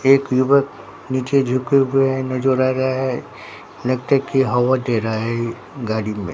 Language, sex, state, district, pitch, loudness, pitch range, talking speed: Hindi, male, Bihar, Katihar, 130 Hz, -19 LUFS, 120-135 Hz, 180 wpm